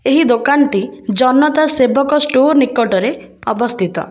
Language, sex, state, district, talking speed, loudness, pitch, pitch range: Odia, female, Odisha, Khordha, 100 wpm, -14 LUFS, 260 Hz, 235-285 Hz